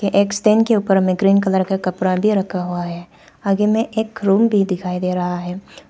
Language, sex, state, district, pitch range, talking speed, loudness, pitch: Hindi, female, Arunachal Pradesh, Papum Pare, 180-205 Hz, 225 wpm, -18 LUFS, 195 Hz